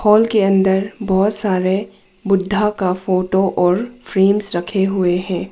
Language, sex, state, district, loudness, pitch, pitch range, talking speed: Hindi, female, Arunachal Pradesh, Papum Pare, -16 LUFS, 195 Hz, 185-210 Hz, 140 wpm